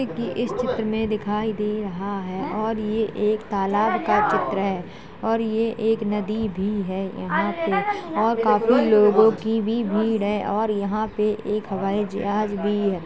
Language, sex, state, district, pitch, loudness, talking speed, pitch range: Hindi, female, Uttar Pradesh, Jalaun, 215 Hz, -23 LUFS, 175 wpm, 205-220 Hz